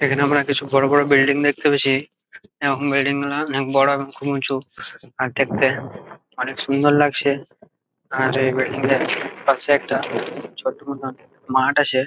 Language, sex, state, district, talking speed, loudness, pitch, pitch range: Bengali, male, West Bengal, Jalpaiguri, 165 wpm, -20 LUFS, 140 Hz, 135-145 Hz